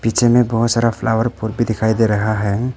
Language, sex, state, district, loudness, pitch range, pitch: Hindi, male, Arunachal Pradesh, Papum Pare, -17 LUFS, 110-120 Hz, 115 Hz